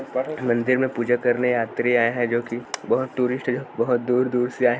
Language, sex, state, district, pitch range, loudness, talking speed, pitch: Hindi, male, Chhattisgarh, Korba, 120-125 Hz, -22 LUFS, 225 wpm, 125 Hz